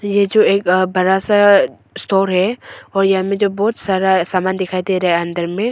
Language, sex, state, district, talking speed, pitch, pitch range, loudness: Hindi, female, Arunachal Pradesh, Longding, 210 wpm, 190 Hz, 185-200 Hz, -15 LUFS